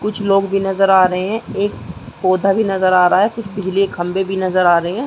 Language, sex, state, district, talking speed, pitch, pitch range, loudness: Hindi, female, Uttar Pradesh, Muzaffarnagar, 270 wpm, 195 Hz, 185-195 Hz, -16 LUFS